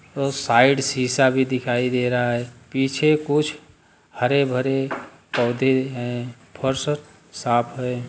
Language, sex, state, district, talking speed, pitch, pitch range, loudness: Hindi, male, Bihar, Jahanabad, 120 wpm, 130 Hz, 120-140 Hz, -21 LUFS